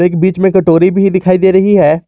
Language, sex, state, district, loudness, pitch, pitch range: Hindi, male, Jharkhand, Garhwa, -10 LUFS, 185 Hz, 175-190 Hz